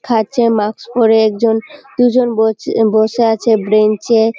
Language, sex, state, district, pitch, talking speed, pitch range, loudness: Bengali, female, West Bengal, Malda, 225 Hz, 150 wpm, 220-235 Hz, -13 LUFS